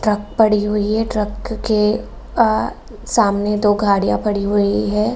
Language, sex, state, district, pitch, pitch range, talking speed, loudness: Hindi, female, Bihar, Saran, 210 Hz, 205-215 Hz, 150 wpm, -17 LUFS